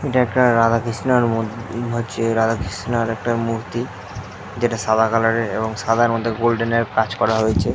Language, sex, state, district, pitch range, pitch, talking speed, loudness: Bengali, male, West Bengal, Jhargram, 110-120 Hz, 115 Hz, 170 wpm, -19 LUFS